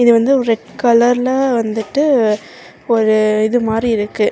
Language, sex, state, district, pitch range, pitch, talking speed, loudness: Tamil, female, Karnataka, Bangalore, 215-245 Hz, 230 Hz, 140 wpm, -14 LUFS